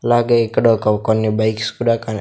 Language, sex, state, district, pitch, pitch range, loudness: Telugu, male, Andhra Pradesh, Sri Satya Sai, 110 Hz, 110-115 Hz, -16 LUFS